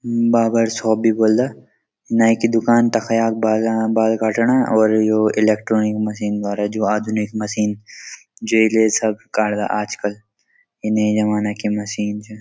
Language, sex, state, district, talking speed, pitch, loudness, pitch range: Garhwali, male, Uttarakhand, Uttarkashi, 150 wpm, 110 Hz, -18 LUFS, 105-115 Hz